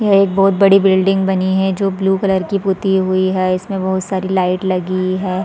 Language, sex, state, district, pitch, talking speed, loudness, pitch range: Hindi, female, Chhattisgarh, Sarguja, 190 Hz, 230 wpm, -15 LUFS, 185-195 Hz